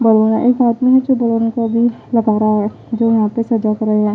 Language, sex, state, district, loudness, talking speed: Hindi, female, Bihar, West Champaran, -15 LUFS, 260 wpm